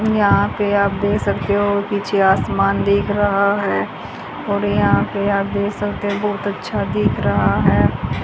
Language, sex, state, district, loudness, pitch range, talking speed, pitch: Hindi, female, Haryana, Charkhi Dadri, -18 LUFS, 200-205 Hz, 165 wpm, 200 Hz